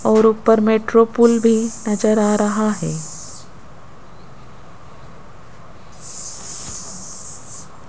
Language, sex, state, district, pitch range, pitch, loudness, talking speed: Hindi, female, Rajasthan, Jaipur, 210-225 Hz, 220 Hz, -17 LUFS, 70 wpm